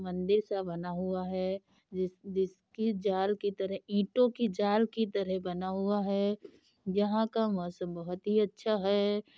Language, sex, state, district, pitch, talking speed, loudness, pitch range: Hindi, female, Uttar Pradesh, Hamirpur, 200 Hz, 160 wpm, -32 LUFS, 185-210 Hz